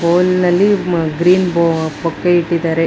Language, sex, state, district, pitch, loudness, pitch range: Kannada, female, Karnataka, Bangalore, 170 Hz, -14 LUFS, 165-180 Hz